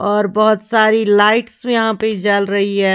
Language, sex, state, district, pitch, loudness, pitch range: Hindi, female, Haryana, Charkhi Dadri, 215 Hz, -14 LUFS, 205-220 Hz